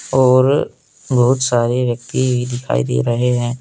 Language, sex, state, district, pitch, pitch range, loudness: Hindi, male, Jharkhand, Deoghar, 125 Hz, 120-130 Hz, -16 LUFS